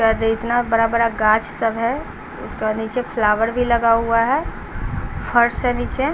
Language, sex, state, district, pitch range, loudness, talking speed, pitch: Hindi, female, Bihar, Patna, 225-240 Hz, -19 LUFS, 165 wpm, 230 Hz